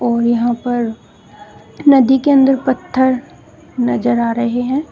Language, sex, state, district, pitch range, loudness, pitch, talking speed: Hindi, female, Uttar Pradesh, Shamli, 235-265 Hz, -15 LUFS, 245 Hz, 135 wpm